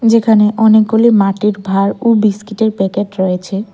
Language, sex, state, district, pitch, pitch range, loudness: Bengali, female, Tripura, West Tripura, 210 Hz, 195-220 Hz, -12 LUFS